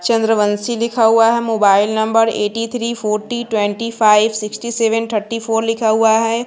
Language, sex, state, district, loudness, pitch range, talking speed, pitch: Hindi, female, Bihar, West Champaran, -16 LUFS, 215-230 Hz, 165 wpm, 225 Hz